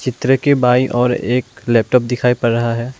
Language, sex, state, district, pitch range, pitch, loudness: Hindi, male, Assam, Sonitpur, 120-130 Hz, 125 Hz, -15 LUFS